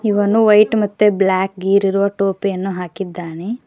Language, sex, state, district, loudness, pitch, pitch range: Kannada, female, Karnataka, Koppal, -16 LUFS, 200 Hz, 190-210 Hz